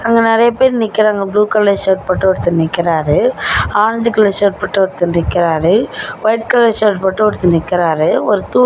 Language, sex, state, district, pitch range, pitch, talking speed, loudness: Tamil, female, Tamil Nadu, Namakkal, 175-225 Hz, 205 Hz, 165 wpm, -13 LUFS